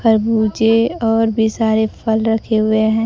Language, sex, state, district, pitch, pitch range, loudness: Hindi, female, Bihar, Kaimur, 220 Hz, 220-225 Hz, -16 LUFS